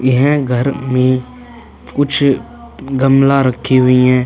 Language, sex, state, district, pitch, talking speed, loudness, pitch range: Hindi, male, Uttar Pradesh, Budaun, 130 Hz, 115 wpm, -13 LUFS, 125-140 Hz